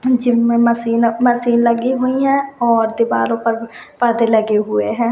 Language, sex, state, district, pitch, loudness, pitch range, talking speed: Hindi, female, Rajasthan, Churu, 235 Hz, -15 LUFS, 230-245 Hz, 150 wpm